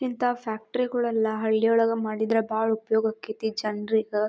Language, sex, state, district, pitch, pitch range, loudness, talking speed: Kannada, female, Karnataka, Dharwad, 220 Hz, 220-230 Hz, -26 LUFS, 125 wpm